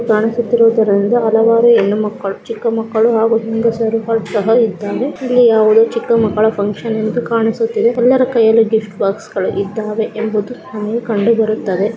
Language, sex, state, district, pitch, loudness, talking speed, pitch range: Kannada, female, Karnataka, Dakshina Kannada, 225 Hz, -14 LUFS, 135 wpm, 215-230 Hz